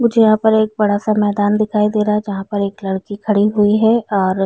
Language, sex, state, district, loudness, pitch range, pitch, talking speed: Hindi, female, Chhattisgarh, Bilaspur, -16 LUFS, 205-215 Hz, 210 Hz, 230 wpm